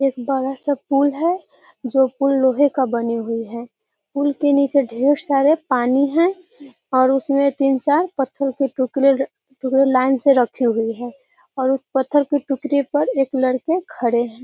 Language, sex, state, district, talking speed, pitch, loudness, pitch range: Hindi, female, Bihar, Muzaffarpur, 180 wpm, 275 Hz, -19 LUFS, 255-285 Hz